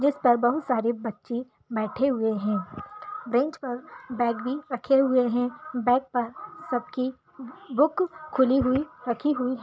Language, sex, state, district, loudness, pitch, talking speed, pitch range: Hindi, female, Bihar, Gaya, -26 LUFS, 255 Hz, 150 wpm, 240-285 Hz